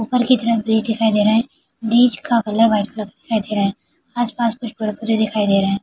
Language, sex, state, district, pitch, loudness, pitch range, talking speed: Hindi, female, Bihar, Araria, 225 Hz, -18 LUFS, 210-235 Hz, 270 wpm